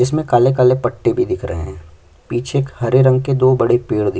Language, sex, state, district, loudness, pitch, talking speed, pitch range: Hindi, male, Chhattisgarh, Kabirdham, -16 LUFS, 125 Hz, 255 wpm, 120-135 Hz